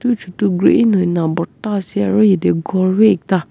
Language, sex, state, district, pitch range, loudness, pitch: Nagamese, female, Nagaland, Kohima, 175-210 Hz, -15 LUFS, 190 Hz